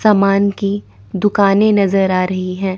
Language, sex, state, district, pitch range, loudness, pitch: Hindi, female, Chandigarh, Chandigarh, 185-205 Hz, -15 LUFS, 195 Hz